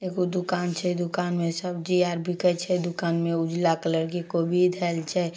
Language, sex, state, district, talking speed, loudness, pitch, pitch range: Maithili, female, Bihar, Samastipur, 190 wpm, -26 LUFS, 175 Hz, 170-180 Hz